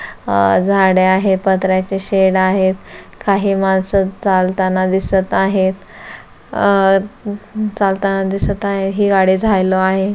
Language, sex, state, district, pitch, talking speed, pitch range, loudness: Marathi, female, Maharashtra, Solapur, 195 Hz, 105 wpm, 190-195 Hz, -15 LUFS